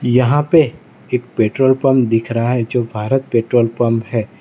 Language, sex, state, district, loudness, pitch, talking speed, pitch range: Hindi, male, Gujarat, Valsad, -16 LUFS, 120 Hz, 175 wpm, 115-130 Hz